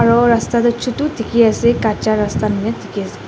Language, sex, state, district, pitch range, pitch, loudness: Nagamese, female, Nagaland, Dimapur, 215-235 Hz, 230 Hz, -16 LUFS